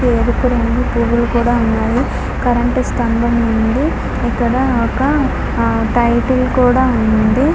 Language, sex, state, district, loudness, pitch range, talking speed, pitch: Telugu, female, Andhra Pradesh, Guntur, -15 LUFS, 235-250 Hz, 105 wpm, 240 Hz